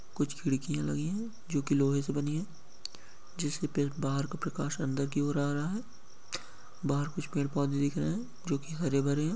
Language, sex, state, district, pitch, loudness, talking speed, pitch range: Hindi, male, West Bengal, Malda, 145 Hz, -33 LUFS, 210 wpm, 140-165 Hz